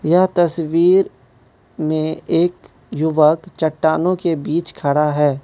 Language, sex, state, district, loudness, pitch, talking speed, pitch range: Hindi, male, Manipur, Imphal West, -17 LUFS, 160 Hz, 110 wpm, 150-170 Hz